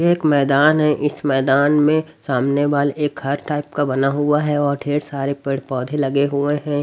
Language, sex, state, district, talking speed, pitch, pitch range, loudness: Hindi, male, Haryana, Rohtak, 200 wpm, 145 Hz, 140-150 Hz, -18 LUFS